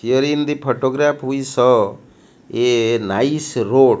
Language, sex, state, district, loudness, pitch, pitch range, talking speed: English, male, Odisha, Malkangiri, -17 LUFS, 130 Hz, 120-145 Hz, 150 wpm